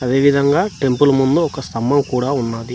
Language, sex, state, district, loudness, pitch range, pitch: Telugu, male, Telangana, Mahabubabad, -16 LUFS, 125-140 Hz, 135 Hz